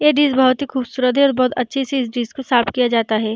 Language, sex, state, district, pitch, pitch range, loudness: Hindi, female, Bihar, Vaishali, 255 Hz, 240-275 Hz, -17 LUFS